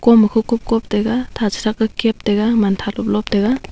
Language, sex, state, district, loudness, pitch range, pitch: Wancho, female, Arunachal Pradesh, Longding, -17 LUFS, 210-230 Hz, 220 Hz